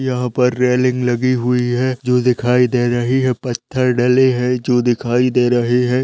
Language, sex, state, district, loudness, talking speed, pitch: Hindi, male, Rajasthan, Nagaur, -16 LUFS, 190 wpm, 125 Hz